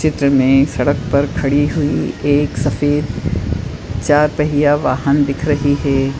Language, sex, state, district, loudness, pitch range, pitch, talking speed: Hindi, female, Uttar Pradesh, Etah, -16 LUFS, 135-145 Hz, 145 Hz, 135 wpm